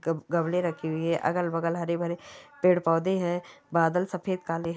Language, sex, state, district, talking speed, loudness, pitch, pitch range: Hindi, female, Chhattisgarh, Sukma, 215 wpm, -28 LUFS, 170 Hz, 165-180 Hz